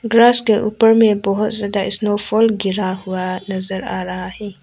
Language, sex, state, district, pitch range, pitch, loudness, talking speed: Hindi, female, Arunachal Pradesh, Lower Dibang Valley, 190-220 Hz, 205 Hz, -16 LUFS, 180 wpm